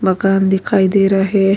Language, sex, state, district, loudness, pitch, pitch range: Urdu, female, Uttar Pradesh, Budaun, -14 LUFS, 195 Hz, 190-195 Hz